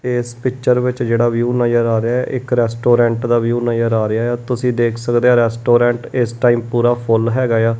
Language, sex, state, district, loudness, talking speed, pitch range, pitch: Punjabi, male, Punjab, Kapurthala, -16 LUFS, 225 wpm, 115-125 Hz, 120 Hz